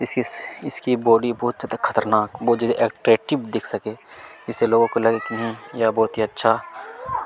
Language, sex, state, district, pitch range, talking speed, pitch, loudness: Hindi, male, Chhattisgarh, Kabirdham, 115-120 Hz, 180 wpm, 115 Hz, -21 LUFS